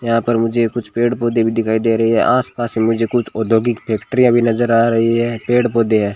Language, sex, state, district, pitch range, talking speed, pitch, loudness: Hindi, male, Rajasthan, Bikaner, 115-120 Hz, 245 wpm, 115 Hz, -16 LUFS